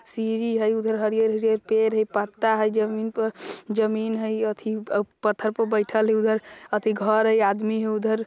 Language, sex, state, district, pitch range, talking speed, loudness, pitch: Bajjika, female, Bihar, Vaishali, 215-220 Hz, 190 wpm, -24 LUFS, 220 Hz